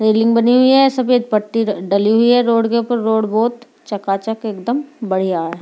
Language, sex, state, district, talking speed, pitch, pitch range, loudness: Hindi, female, Delhi, New Delhi, 205 wpm, 225 Hz, 210-240 Hz, -16 LUFS